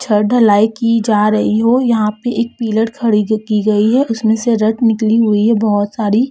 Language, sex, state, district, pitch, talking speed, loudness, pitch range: Hindi, female, Uttar Pradesh, Etah, 220 Hz, 210 wpm, -13 LUFS, 215-230 Hz